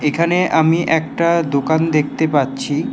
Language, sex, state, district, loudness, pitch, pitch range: Bengali, male, West Bengal, Alipurduar, -16 LUFS, 160 Hz, 145-165 Hz